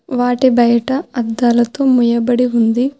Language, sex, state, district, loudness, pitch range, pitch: Telugu, female, Telangana, Hyderabad, -14 LUFS, 235-260 Hz, 245 Hz